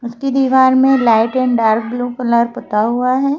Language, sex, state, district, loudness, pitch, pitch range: Hindi, female, Madhya Pradesh, Bhopal, -14 LUFS, 245 Hz, 235-260 Hz